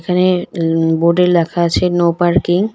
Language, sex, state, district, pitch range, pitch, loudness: Bengali, female, West Bengal, Cooch Behar, 170-180 Hz, 175 Hz, -14 LUFS